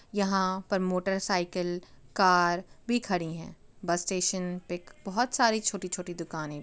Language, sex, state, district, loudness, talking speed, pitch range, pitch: Hindi, female, Uttar Pradesh, Jyotiba Phule Nagar, -29 LUFS, 145 wpm, 175-195 Hz, 185 Hz